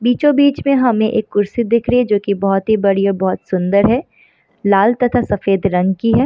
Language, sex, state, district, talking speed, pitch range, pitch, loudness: Hindi, female, Bihar, Samastipur, 220 wpm, 195-245 Hz, 220 Hz, -15 LUFS